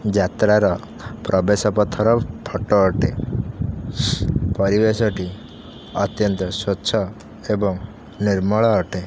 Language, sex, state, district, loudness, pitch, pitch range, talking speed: Odia, male, Odisha, Khordha, -20 LUFS, 105 Hz, 95-110 Hz, 75 wpm